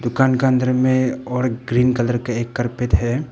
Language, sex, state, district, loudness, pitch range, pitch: Hindi, male, Arunachal Pradesh, Papum Pare, -19 LUFS, 120-130 Hz, 125 Hz